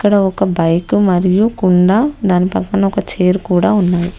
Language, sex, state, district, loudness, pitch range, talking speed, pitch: Telugu, female, Telangana, Hyderabad, -13 LUFS, 180-200 Hz, 160 wpm, 190 Hz